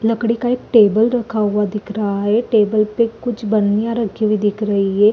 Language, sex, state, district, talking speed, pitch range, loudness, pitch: Hindi, female, Chhattisgarh, Rajnandgaon, 210 wpm, 210-230 Hz, -17 LUFS, 215 Hz